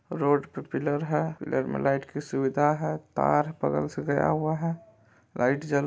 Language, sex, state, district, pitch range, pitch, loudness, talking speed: Maithili, male, Bihar, Supaul, 110-150 Hz, 140 Hz, -27 LUFS, 195 wpm